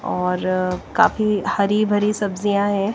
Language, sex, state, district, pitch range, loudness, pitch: Hindi, female, Punjab, Kapurthala, 185-210 Hz, -20 LUFS, 200 Hz